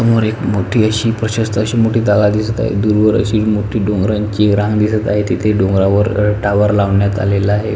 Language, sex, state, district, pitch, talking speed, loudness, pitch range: Marathi, male, Maharashtra, Pune, 105 Hz, 200 wpm, -14 LUFS, 105-110 Hz